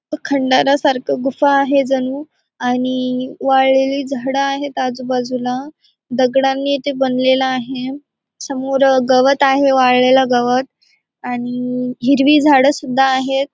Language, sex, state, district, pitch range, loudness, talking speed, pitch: Marathi, female, Maharashtra, Aurangabad, 255-275 Hz, -15 LUFS, 110 wpm, 265 Hz